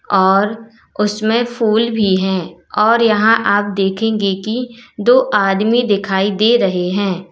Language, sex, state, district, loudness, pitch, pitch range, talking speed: Hindi, female, Uttar Pradesh, Lalitpur, -15 LUFS, 210 Hz, 195-225 Hz, 130 wpm